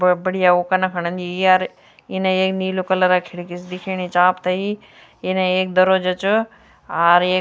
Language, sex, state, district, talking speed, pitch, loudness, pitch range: Garhwali, female, Uttarakhand, Tehri Garhwal, 210 wpm, 185 Hz, -18 LUFS, 180-185 Hz